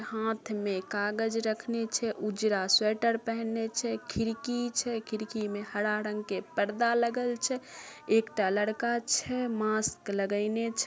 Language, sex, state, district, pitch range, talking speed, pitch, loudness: Maithili, female, Bihar, Samastipur, 210-235 Hz, 145 wpm, 220 Hz, -30 LUFS